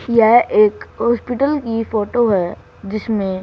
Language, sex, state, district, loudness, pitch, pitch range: Hindi, female, Haryana, Charkhi Dadri, -17 LUFS, 230 Hz, 215-250 Hz